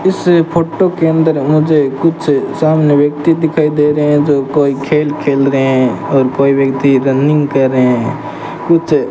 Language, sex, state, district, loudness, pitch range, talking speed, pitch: Hindi, male, Rajasthan, Bikaner, -12 LUFS, 140-160 Hz, 180 wpm, 150 Hz